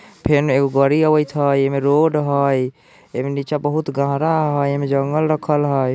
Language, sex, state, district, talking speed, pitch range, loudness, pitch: Bajjika, male, Bihar, Vaishali, 180 wpm, 140-155 Hz, -18 LUFS, 140 Hz